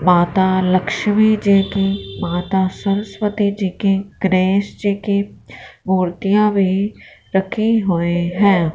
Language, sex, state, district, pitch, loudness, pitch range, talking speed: Hindi, female, Punjab, Fazilka, 195 Hz, -17 LUFS, 185-200 Hz, 110 wpm